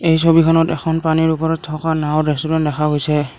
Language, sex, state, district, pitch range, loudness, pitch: Assamese, male, Assam, Kamrup Metropolitan, 150-165 Hz, -16 LUFS, 160 Hz